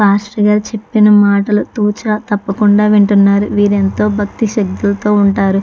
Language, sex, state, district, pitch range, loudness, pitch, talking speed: Telugu, female, Andhra Pradesh, Chittoor, 200-210 Hz, -12 LUFS, 205 Hz, 130 wpm